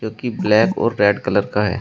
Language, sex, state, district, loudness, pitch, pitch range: Hindi, male, Uttar Pradesh, Shamli, -18 LUFS, 105 Hz, 100-110 Hz